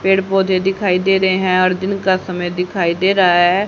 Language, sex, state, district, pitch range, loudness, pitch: Hindi, female, Haryana, Charkhi Dadri, 180-195 Hz, -15 LUFS, 185 Hz